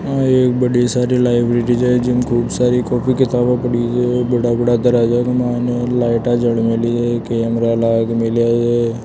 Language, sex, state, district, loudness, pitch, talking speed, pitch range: Marwari, male, Rajasthan, Churu, -16 LUFS, 120 Hz, 165 wpm, 120-125 Hz